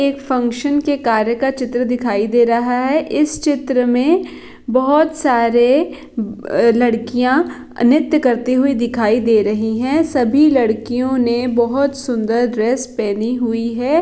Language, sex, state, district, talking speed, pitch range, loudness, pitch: Hindi, female, Bihar, Jahanabad, 135 wpm, 235-275 Hz, -16 LUFS, 245 Hz